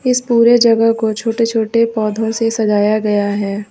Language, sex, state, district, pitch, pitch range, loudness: Hindi, female, Uttar Pradesh, Lucknow, 225 Hz, 210-230 Hz, -14 LUFS